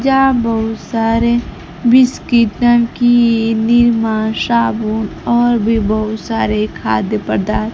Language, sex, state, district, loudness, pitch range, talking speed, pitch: Hindi, female, Bihar, Kaimur, -14 LUFS, 220-240 Hz, 110 wpm, 230 Hz